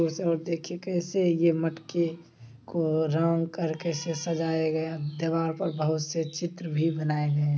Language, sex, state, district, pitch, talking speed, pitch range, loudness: Hindi, male, Bihar, Samastipur, 165 Hz, 180 wpm, 155-170 Hz, -28 LUFS